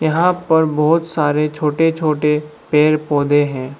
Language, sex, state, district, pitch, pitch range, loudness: Hindi, male, Assam, Sonitpur, 150 Hz, 150-160 Hz, -16 LUFS